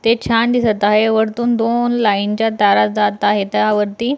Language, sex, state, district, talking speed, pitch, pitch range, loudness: Marathi, female, Maharashtra, Dhule, 170 wpm, 220 Hz, 210-235 Hz, -15 LUFS